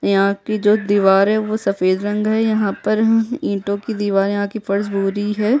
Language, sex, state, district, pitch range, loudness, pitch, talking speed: Hindi, female, Chhattisgarh, Bastar, 200-215 Hz, -18 LUFS, 205 Hz, 215 wpm